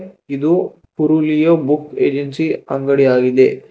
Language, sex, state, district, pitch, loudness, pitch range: Kannada, male, Karnataka, Bangalore, 150 Hz, -15 LUFS, 140-165 Hz